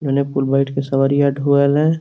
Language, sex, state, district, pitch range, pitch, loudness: Bhojpuri, male, Uttar Pradesh, Gorakhpur, 135-140 Hz, 140 Hz, -17 LUFS